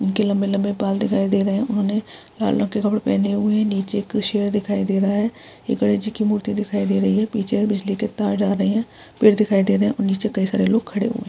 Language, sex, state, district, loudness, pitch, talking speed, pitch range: Hindi, female, Chhattisgarh, Sukma, -20 LUFS, 205 Hz, 280 wpm, 200-215 Hz